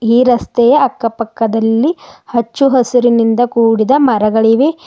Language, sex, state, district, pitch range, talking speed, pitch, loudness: Kannada, female, Karnataka, Bidar, 225-255 Hz, 100 wpm, 235 Hz, -12 LUFS